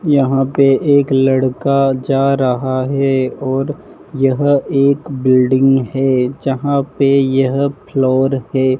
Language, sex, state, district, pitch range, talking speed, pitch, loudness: Hindi, male, Madhya Pradesh, Dhar, 130-140 Hz, 115 wpm, 135 Hz, -14 LUFS